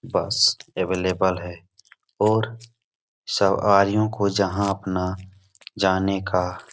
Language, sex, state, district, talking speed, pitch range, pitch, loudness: Hindi, male, Bihar, Supaul, 100 wpm, 95-100 Hz, 95 Hz, -22 LUFS